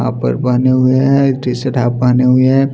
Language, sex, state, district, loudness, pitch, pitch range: Hindi, male, Chhattisgarh, Raipur, -13 LUFS, 130 Hz, 125-130 Hz